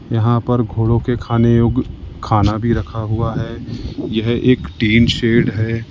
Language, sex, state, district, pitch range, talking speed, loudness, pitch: Hindi, male, Uttar Pradesh, Lalitpur, 115-120 Hz, 160 wpm, -16 LUFS, 115 Hz